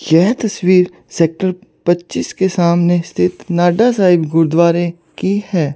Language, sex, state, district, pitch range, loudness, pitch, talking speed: Hindi, female, Chandigarh, Chandigarh, 170-185 Hz, -15 LUFS, 175 Hz, 125 wpm